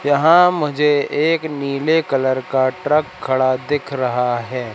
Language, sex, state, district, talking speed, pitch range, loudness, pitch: Hindi, male, Madhya Pradesh, Katni, 140 wpm, 130-150 Hz, -17 LUFS, 140 Hz